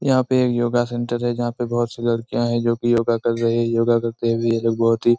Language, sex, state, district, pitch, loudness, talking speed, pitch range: Hindi, male, Chhattisgarh, Raigarh, 120 Hz, -20 LUFS, 265 wpm, 115-120 Hz